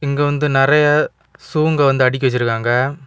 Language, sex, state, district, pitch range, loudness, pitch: Tamil, male, Tamil Nadu, Kanyakumari, 130-150 Hz, -16 LUFS, 140 Hz